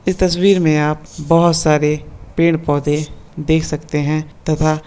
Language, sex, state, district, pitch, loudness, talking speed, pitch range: Hindi, male, Jharkhand, Jamtara, 155 Hz, -16 LUFS, 145 wpm, 150-165 Hz